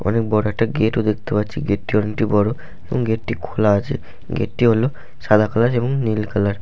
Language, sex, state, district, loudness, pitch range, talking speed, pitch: Bengali, male, West Bengal, Paschim Medinipur, -19 LUFS, 105-115 Hz, 235 wpm, 110 Hz